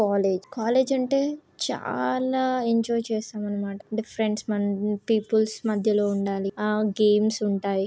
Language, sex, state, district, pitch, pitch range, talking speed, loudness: Telugu, female, Andhra Pradesh, Guntur, 215 Hz, 205-230 Hz, 105 wpm, -25 LUFS